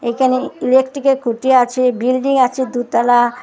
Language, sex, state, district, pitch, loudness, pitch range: Bengali, female, Assam, Hailakandi, 255 Hz, -15 LUFS, 245-260 Hz